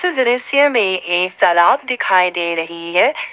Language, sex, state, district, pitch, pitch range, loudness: Hindi, female, Jharkhand, Ranchi, 185 Hz, 175-255 Hz, -15 LUFS